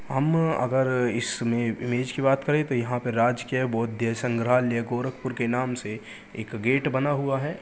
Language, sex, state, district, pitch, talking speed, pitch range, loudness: Hindi, male, Uttar Pradesh, Gorakhpur, 125 Hz, 175 wpm, 120-130 Hz, -25 LUFS